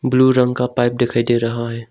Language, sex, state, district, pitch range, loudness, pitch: Hindi, male, Arunachal Pradesh, Longding, 120-125 Hz, -17 LUFS, 120 Hz